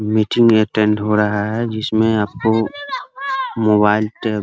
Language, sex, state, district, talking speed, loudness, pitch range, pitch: Hindi, male, Bihar, Muzaffarpur, 135 wpm, -17 LUFS, 105-115 Hz, 110 Hz